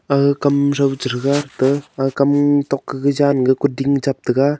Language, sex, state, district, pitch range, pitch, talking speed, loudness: Wancho, male, Arunachal Pradesh, Longding, 135-140 Hz, 140 Hz, 185 wpm, -17 LUFS